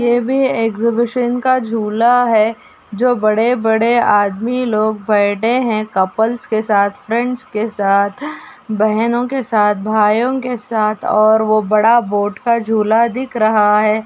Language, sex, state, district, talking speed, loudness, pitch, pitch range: Hindi, female, Uttar Pradesh, Ghazipur, 145 wpm, -15 LUFS, 220 Hz, 215-240 Hz